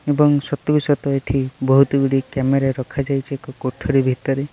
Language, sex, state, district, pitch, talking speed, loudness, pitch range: Odia, male, Odisha, Nuapada, 135 Hz, 130 wpm, -19 LUFS, 135-145 Hz